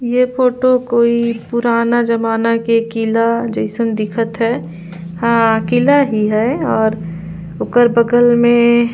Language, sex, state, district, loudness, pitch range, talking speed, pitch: Surgujia, female, Chhattisgarh, Sarguja, -14 LUFS, 225-240 Hz, 130 wpm, 230 Hz